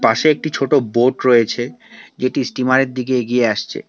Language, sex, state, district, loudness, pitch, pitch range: Bengali, male, West Bengal, Alipurduar, -17 LUFS, 125 Hz, 120-130 Hz